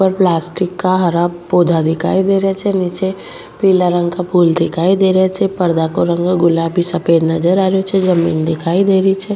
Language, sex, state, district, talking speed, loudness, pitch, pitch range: Rajasthani, female, Rajasthan, Churu, 205 wpm, -14 LUFS, 180 Hz, 170-190 Hz